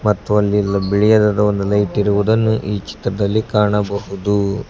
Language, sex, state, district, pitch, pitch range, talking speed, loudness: Kannada, male, Karnataka, Koppal, 105 Hz, 100-105 Hz, 115 wpm, -17 LUFS